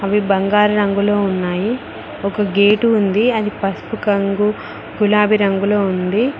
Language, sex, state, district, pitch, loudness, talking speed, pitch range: Telugu, female, Telangana, Mahabubabad, 205 Hz, -16 LUFS, 120 wpm, 195-210 Hz